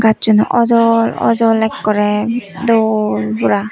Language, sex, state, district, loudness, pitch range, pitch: Chakma, female, Tripura, West Tripura, -14 LUFS, 210-230 Hz, 220 Hz